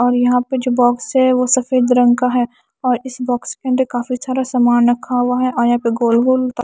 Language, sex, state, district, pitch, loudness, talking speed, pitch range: Hindi, female, Haryana, Charkhi Dadri, 250 Hz, -16 LUFS, 255 wpm, 245-255 Hz